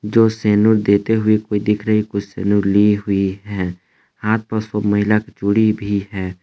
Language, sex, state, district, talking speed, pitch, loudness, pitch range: Hindi, male, Jharkhand, Palamu, 185 wpm, 105 Hz, -17 LUFS, 100-110 Hz